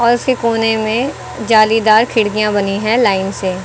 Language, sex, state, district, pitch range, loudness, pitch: Hindi, female, Uttar Pradesh, Lucknow, 205-235 Hz, -14 LUFS, 220 Hz